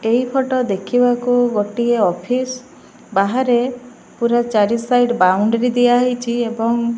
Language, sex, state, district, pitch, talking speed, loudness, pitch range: Odia, female, Odisha, Malkangiri, 240 Hz, 110 wpm, -17 LUFS, 230-245 Hz